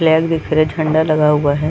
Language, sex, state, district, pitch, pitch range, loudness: Hindi, female, Chhattisgarh, Balrampur, 155 Hz, 150-160 Hz, -15 LUFS